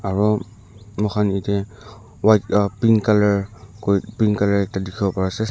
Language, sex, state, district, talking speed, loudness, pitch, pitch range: Nagamese, male, Nagaland, Dimapur, 150 wpm, -20 LUFS, 105 Hz, 100-105 Hz